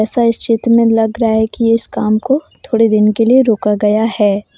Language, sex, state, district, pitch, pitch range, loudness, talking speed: Hindi, female, Jharkhand, Deoghar, 225 Hz, 215-230 Hz, -13 LUFS, 250 wpm